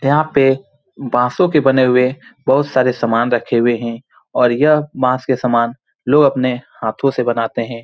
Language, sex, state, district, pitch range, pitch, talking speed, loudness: Hindi, male, Bihar, Saran, 120-140 Hz, 130 Hz, 185 wpm, -16 LUFS